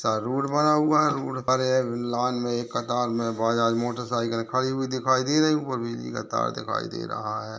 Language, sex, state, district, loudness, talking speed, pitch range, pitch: Hindi, male, Uttar Pradesh, Gorakhpur, -25 LUFS, 125 wpm, 115-130 Hz, 125 Hz